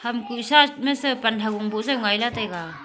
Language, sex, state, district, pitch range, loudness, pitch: Wancho, female, Arunachal Pradesh, Longding, 215-265 Hz, -22 LUFS, 235 Hz